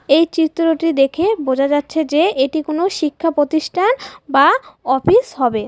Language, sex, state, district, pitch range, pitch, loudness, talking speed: Bengali, female, West Bengal, Alipurduar, 280-335 Hz, 315 Hz, -16 LUFS, 135 wpm